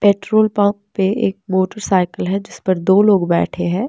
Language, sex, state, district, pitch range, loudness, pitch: Hindi, female, Bihar, West Champaran, 185-210 Hz, -17 LUFS, 195 Hz